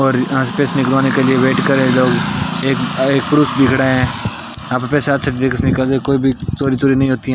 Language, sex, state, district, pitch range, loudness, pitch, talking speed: Hindi, male, Rajasthan, Bikaner, 130-135 Hz, -15 LUFS, 135 Hz, 190 wpm